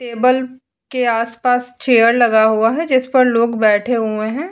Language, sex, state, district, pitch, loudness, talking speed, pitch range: Hindi, female, Goa, North and South Goa, 240 Hz, -15 LUFS, 170 wpm, 230-255 Hz